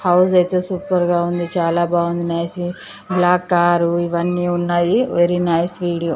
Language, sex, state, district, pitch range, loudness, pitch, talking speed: Telugu, female, Andhra Pradesh, Chittoor, 170-180 Hz, -18 LUFS, 175 Hz, 135 wpm